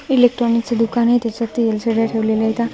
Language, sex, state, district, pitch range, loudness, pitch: Marathi, female, Maharashtra, Washim, 225-240 Hz, -17 LUFS, 230 Hz